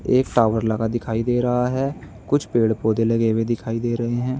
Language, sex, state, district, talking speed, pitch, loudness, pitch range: Hindi, male, Uttar Pradesh, Saharanpur, 220 wpm, 115 Hz, -21 LUFS, 115-125 Hz